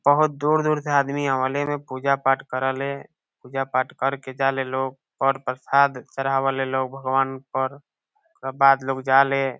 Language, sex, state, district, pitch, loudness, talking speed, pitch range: Bhojpuri, male, Bihar, Saran, 135 Hz, -23 LUFS, 150 wpm, 130-140 Hz